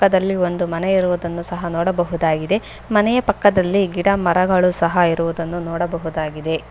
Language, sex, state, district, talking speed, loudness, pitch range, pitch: Kannada, female, Karnataka, Bangalore, 115 wpm, -19 LUFS, 170-190 Hz, 175 Hz